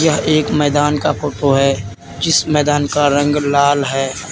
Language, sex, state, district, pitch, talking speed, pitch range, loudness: Hindi, male, Uttar Pradesh, Lalitpur, 145 Hz, 165 wpm, 140-150 Hz, -15 LUFS